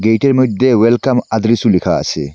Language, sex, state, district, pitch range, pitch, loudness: Bengali, male, Assam, Hailakandi, 110-130 Hz, 115 Hz, -13 LUFS